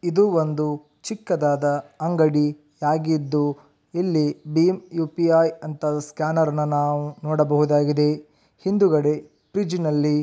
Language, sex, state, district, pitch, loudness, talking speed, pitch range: Kannada, male, Karnataka, Raichur, 150 Hz, -22 LUFS, 75 wpm, 150-165 Hz